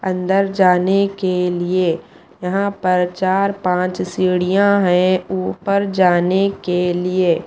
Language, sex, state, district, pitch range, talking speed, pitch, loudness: Hindi, female, Punjab, Pathankot, 180-195 Hz, 105 wpm, 185 Hz, -17 LUFS